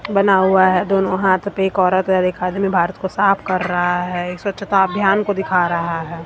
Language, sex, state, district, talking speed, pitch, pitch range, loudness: Hindi, female, Bihar, Katihar, 220 wpm, 190 Hz, 180-195 Hz, -17 LUFS